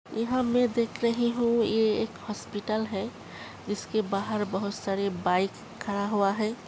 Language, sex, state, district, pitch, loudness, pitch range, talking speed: Hindi, female, Uttar Pradesh, Hamirpur, 215 Hz, -28 LUFS, 200-230 Hz, 155 wpm